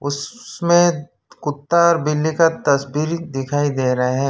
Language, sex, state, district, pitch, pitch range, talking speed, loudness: Hindi, male, Gujarat, Valsad, 150 Hz, 140-170 Hz, 140 wpm, -18 LUFS